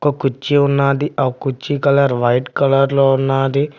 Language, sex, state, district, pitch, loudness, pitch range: Telugu, male, Telangana, Mahabubabad, 140 Hz, -16 LUFS, 135-140 Hz